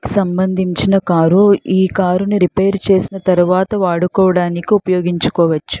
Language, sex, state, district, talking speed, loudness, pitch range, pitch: Telugu, female, Andhra Pradesh, Chittoor, 95 wpm, -14 LUFS, 180-195 Hz, 185 Hz